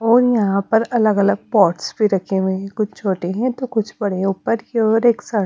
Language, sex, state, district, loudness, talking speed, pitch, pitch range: Hindi, female, Punjab, Kapurthala, -18 LUFS, 220 wpm, 215 Hz, 195-230 Hz